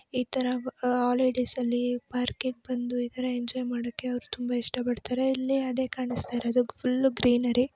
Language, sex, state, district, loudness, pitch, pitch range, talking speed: Kannada, female, Karnataka, Belgaum, -28 LUFS, 250 Hz, 245-255 Hz, 125 wpm